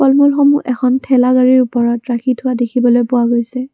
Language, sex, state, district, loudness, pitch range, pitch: Assamese, female, Assam, Kamrup Metropolitan, -13 LUFS, 240-260 Hz, 255 Hz